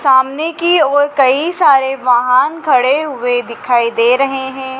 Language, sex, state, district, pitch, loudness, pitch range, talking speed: Hindi, female, Madhya Pradesh, Dhar, 265 Hz, -13 LUFS, 250-290 Hz, 150 wpm